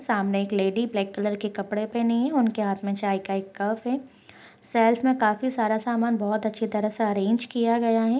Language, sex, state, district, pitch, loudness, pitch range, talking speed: Hindi, female, Goa, North and South Goa, 220 Hz, -25 LUFS, 205-235 Hz, 220 wpm